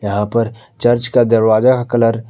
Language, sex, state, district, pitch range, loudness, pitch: Hindi, male, Jharkhand, Palamu, 110-120 Hz, -14 LUFS, 115 Hz